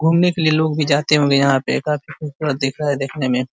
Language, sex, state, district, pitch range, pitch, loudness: Hindi, male, Uttar Pradesh, Ghazipur, 140-155 Hz, 150 Hz, -18 LUFS